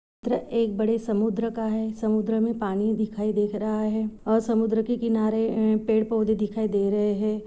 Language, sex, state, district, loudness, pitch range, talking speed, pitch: Hindi, female, Goa, North and South Goa, -25 LUFS, 215-225 Hz, 190 wpm, 220 Hz